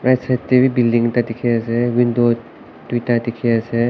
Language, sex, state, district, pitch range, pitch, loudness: Nagamese, male, Nagaland, Kohima, 115-120 Hz, 120 Hz, -17 LUFS